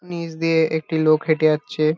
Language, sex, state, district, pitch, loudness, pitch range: Bengali, male, West Bengal, Kolkata, 160 Hz, -20 LUFS, 155-165 Hz